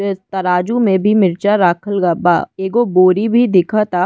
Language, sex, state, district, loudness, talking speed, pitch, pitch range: Bhojpuri, female, Uttar Pradesh, Ghazipur, -14 LUFS, 175 wpm, 190 Hz, 180-210 Hz